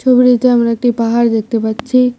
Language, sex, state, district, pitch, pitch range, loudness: Bengali, female, West Bengal, Cooch Behar, 240 Hz, 230-250 Hz, -13 LUFS